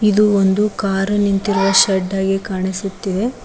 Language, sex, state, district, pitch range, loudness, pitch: Kannada, female, Karnataka, Koppal, 195-205 Hz, -16 LUFS, 195 Hz